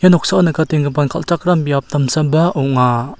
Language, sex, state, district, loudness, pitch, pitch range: Garo, male, Meghalaya, South Garo Hills, -15 LUFS, 155 Hz, 140-170 Hz